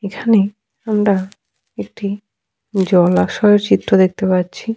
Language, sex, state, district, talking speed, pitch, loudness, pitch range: Bengali, female, Jharkhand, Sahebganj, 40 wpm, 200 Hz, -16 LUFS, 190-210 Hz